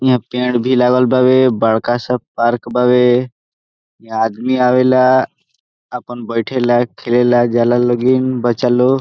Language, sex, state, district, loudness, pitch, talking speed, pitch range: Bhojpuri, male, Bihar, Saran, -14 LUFS, 125 Hz, 120 wpm, 120-125 Hz